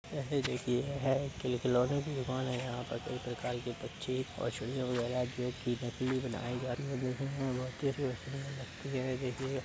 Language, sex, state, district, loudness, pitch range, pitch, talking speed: Hindi, male, Uttar Pradesh, Deoria, -36 LUFS, 125-135 Hz, 130 Hz, 210 wpm